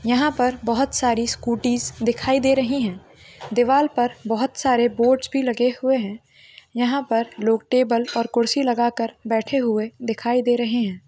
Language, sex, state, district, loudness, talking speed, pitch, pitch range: Hindi, female, Chhattisgarh, Raigarh, -21 LUFS, 175 wpm, 240 Hz, 230-255 Hz